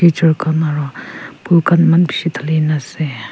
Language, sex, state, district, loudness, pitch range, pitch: Nagamese, female, Nagaland, Kohima, -15 LUFS, 150-170 Hz, 160 Hz